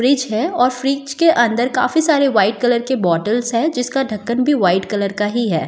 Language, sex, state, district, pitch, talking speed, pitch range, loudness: Hindi, female, Delhi, New Delhi, 245 Hz, 220 wpm, 215-275 Hz, -16 LUFS